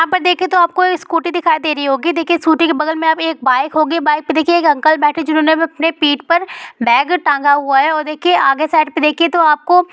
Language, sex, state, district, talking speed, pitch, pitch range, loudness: Hindi, female, West Bengal, Purulia, 225 wpm, 320 Hz, 300-340 Hz, -13 LUFS